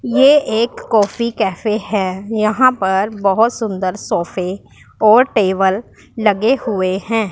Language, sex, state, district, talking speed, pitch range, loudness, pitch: Hindi, female, Punjab, Pathankot, 125 wpm, 195-230 Hz, -16 LUFS, 215 Hz